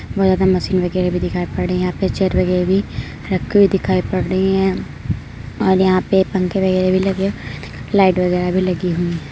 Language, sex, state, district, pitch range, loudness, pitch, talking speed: Hindi, male, Bihar, Madhepura, 180-190 Hz, -17 LUFS, 185 Hz, 210 wpm